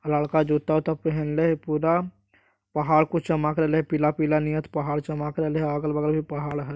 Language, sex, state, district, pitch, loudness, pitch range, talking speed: Magahi, male, Bihar, Jahanabad, 155 Hz, -24 LUFS, 150-160 Hz, 180 wpm